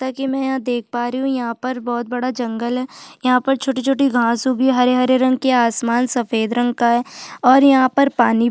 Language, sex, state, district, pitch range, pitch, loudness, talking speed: Hindi, female, Chhattisgarh, Jashpur, 240-260 Hz, 250 Hz, -17 LUFS, 255 wpm